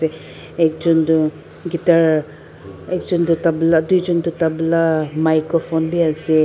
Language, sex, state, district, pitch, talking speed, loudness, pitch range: Nagamese, female, Nagaland, Dimapur, 165 Hz, 100 wpm, -17 LUFS, 160-170 Hz